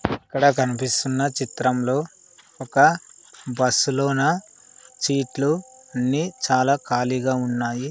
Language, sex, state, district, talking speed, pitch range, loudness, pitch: Telugu, male, Andhra Pradesh, Sri Satya Sai, 90 wpm, 125-140 Hz, -22 LUFS, 130 Hz